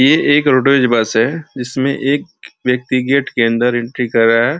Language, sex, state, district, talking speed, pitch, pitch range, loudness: Hindi, male, Uttar Pradesh, Ghazipur, 195 wpm, 125 Hz, 120-140 Hz, -14 LUFS